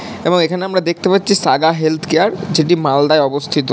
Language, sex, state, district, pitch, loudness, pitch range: Bengali, male, West Bengal, Malda, 165 Hz, -14 LUFS, 155-185 Hz